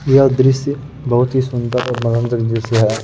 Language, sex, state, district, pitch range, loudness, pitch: Hindi, male, Uttar Pradesh, Muzaffarnagar, 115-135 Hz, -16 LUFS, 125 Hz